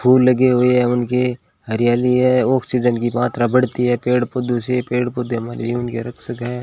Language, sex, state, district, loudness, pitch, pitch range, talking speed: Hindi, male, Rajasthan, Bikaner, -18 LUFS, 125 Hz, 120-125 Hz, 200 wpm